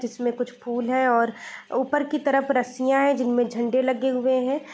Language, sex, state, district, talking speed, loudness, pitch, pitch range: Hindi, female, Bihar, East Champaran, 190 wpm, -23 LUFS, 255 Hz, 245-270 Hz